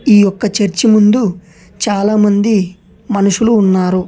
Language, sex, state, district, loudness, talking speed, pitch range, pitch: Telugu, male, Telangana, Hyderabad, -12 LUFS, 105 wpm, 190-215 Hz, 205 Hz